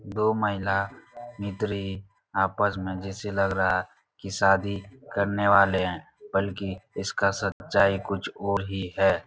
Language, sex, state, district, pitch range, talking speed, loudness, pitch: Hindi, male, Uttar Pradesh, Etah, 95-100 Hz, 135 wpm, -26 LUFS, 100 Hz